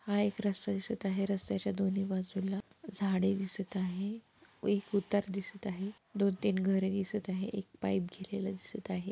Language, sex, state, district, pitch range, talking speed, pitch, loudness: Marathi, female, Maharashtra, Pune, 190-205 Hz, 160 wpm, 195 Hz, -35 LUFS